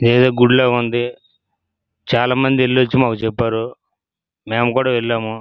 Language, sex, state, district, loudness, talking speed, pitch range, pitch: Telugu, male, Andhra Pradesh, Srikakulam, -16 LUFS, 135 wpm, 115-125 Hz, 120 Hz